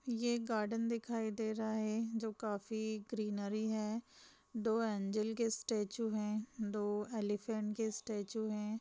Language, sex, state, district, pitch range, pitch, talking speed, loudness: Hindi, female, Jharkhand, Sahebganj, 210-225 Hz, 220 Hz, 145 wpm, -39 LUFS